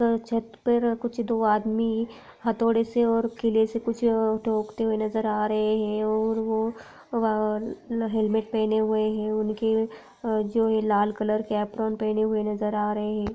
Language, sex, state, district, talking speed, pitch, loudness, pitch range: Hindi, female, Maharashtra, Aurangabad, 160 wpm, 220 Hz, -26 LUFS, 215-230 Hz